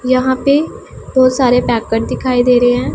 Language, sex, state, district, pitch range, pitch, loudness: Hindi, female, Punjab, Pathankot, 245-260 Hz, 250 Hz, -13 LUFS